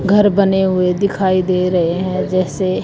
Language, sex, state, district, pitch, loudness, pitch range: Hindi, female, Haryana, Jhajjar, 185 Hz, -15 LUFS, 185-190 Hz